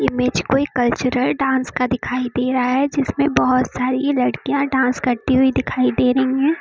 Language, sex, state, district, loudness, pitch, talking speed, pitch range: Hindi, female, Uttar Pradesh, Lucknow, -18 LUFS, 255 Hz, 180 wpm, 250-265 Hz